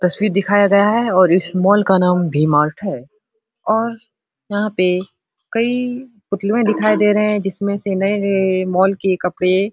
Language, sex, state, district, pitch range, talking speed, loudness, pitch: Hindi, male, Bihar, Supaul, 185-215 Hz, 175 wpm, -16 LUFS, 200 Hz